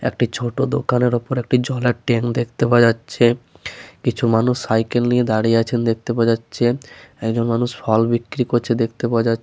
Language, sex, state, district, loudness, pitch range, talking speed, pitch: Bengali, male, West Bengal, Paschim Medinipur, -19 LUFS, 115-125 Hz, 180 wpm, 120 Hz